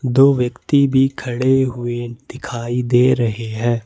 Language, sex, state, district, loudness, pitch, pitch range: Hindi, male, Jharkhand, Ranchi, -17 LUFS, 125 Hz, 120-130 Hz